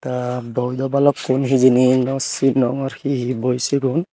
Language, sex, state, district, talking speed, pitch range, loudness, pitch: Chakma, male, Tripura, Unakoti, 145 wpm, 125-135 Hz, -18 LUFS, 130 Hz